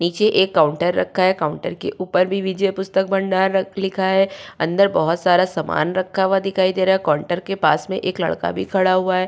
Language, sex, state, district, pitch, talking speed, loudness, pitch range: Hindi, female, Uttar Pradesh, Budaun, 190 Hz, 220 wpm, -19 LUFS, 180-195 Hz